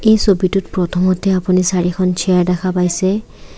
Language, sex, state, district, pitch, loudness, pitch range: Assamese, female, Assam, Kamrup Metropolitan, 185 Hz, -15 LUFS, 180-190 Hz